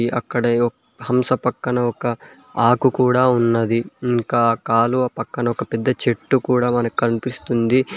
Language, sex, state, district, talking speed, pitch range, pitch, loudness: Telugu, male, Telangana, Mahabubabad, 135 wpm, 115-125 Hz, 120 Hz, -19 LUFS